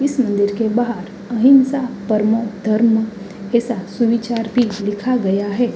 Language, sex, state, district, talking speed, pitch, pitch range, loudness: Hindi, female, Uttar Pradesh, Hamirpur, 145 wpm, 225 Hz, 205-240 Hz, -17 LUFS